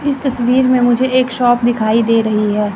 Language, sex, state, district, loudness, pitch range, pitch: Hindi, female, Chandigarh, Chandigarh, -13 LUFS, 225-255 Hz, 245 Hz